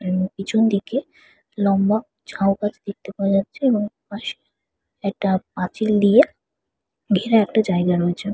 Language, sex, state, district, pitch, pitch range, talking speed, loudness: Bengali, female, West Bengal, Purulia, 200 Hz, 195-215 Hz, 130 wpm, -20 LUFS